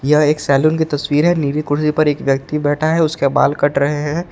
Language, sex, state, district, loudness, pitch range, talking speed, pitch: Hindi, male, Jharkhand, Palamu, -16 LUFS, 145-155 Hz, 250 wpm, 150 Hz